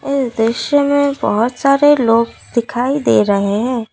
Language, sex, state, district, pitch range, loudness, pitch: Hindi, female, Assam, Kamrup Metropolitan, 230-280 Hz, -15 LUFS, 245 Hz